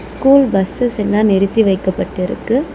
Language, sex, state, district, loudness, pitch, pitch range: Tamil, female, Tamil Nadu, Chennai, -14 LUFS, 210 Hz, 195-245 Hz